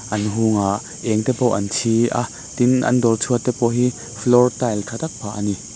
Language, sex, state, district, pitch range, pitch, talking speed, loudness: Mizo, male, Mizoram, Aizawl, 105-125 Hz, 115 Hz, 230 wpm, -19 LUFS